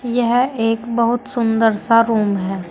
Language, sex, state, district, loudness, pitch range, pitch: Hindi, female, Uttar Pradesh, Saharanpur, -17 LUFS, 220-240 Hz, 230 Hz